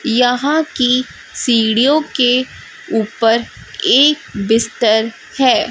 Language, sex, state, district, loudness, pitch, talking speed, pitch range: Hindi, female, Chhattisgarh, Raipur, -14 LUFS, 245 Hz, 85 wpm, 225-275 Hz